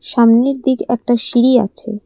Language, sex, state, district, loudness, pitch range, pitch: Bengali, female, Assam, Kamrup Metropolitan, -14 LUFS, 230-250 Hz, 240 Hz